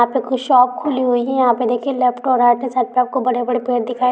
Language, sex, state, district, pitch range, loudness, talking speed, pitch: Hindi, female, Rajasthan, Nagaur, 245-255 Hz, -17 LUFS, 220 wpm, 250 Hz